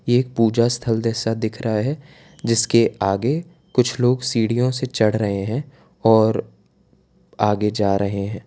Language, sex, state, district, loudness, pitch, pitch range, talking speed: Hindi, male, Gujarat, Valsad, -20 LUFS, 115 Hz, 105-125 Hz, 150 wpm